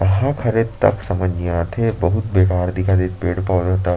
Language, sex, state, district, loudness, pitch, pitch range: Chhattisgarhi, male, Chhattisgarh, Sarguja, -19 LUFS, 95 Hz, 90-105 Hz